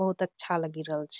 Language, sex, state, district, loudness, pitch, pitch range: Angika, female, Bihar, Bhagalpur, -31 LUFS, 165 Hz, 155-185 Hz